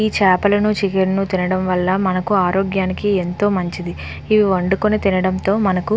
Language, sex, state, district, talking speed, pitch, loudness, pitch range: Telugu, female, Andhra Pradesh, Visakhapatnam, 140 wpm, 190 Hz, -17 LUFS, 185-205 Hz